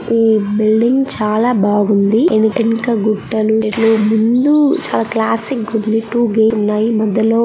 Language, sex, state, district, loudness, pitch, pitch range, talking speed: Telugu, female, Telangana, Karimnagar, -14 LUFS, 220 Hz, 215-230 Hz, 95 wpm